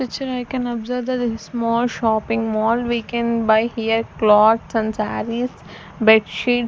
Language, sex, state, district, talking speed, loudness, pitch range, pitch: English, female, Chandigarh, Chandigarh, 155 wpm, -19 LUFS, 220-245 Hz, 230 Hz